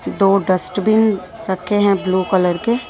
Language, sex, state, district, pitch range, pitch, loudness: Hindi, female, Delhi, New Delhi, 185-210 Hz, 195 Hz, -17 LUFS